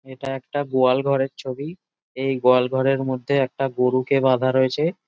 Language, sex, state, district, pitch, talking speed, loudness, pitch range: Bengali, male, West Bengal, Jalpaiguri, 135 Hz, 165 wpm, -21 LUFS, 130-140 Hz